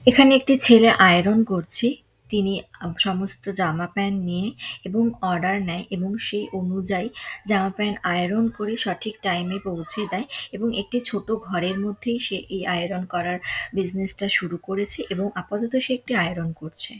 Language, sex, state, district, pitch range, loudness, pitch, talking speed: Bengali, female, West Bengal, Purulia, 185-220 Hz, -22 LUFS, 195 Hz, 155 wpm